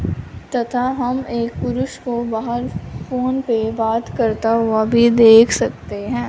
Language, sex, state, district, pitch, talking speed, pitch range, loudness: Hindi, female, Punjab, Fazilka, 235 Hz, 145 wpm, 225-245 Hz, -17 LUFS